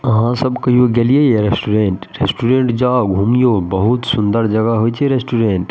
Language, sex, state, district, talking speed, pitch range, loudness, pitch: Maithili, male, Bihar, Madhepura, 170 wpm, 110-125 Hz, -15 LUFS, 120 Hz